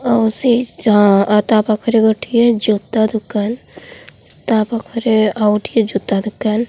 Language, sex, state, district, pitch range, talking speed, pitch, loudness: Odia, female, Odisha, Khordha, 210-230 Hz, 135 wpm, 220 Hz, -15 LUFS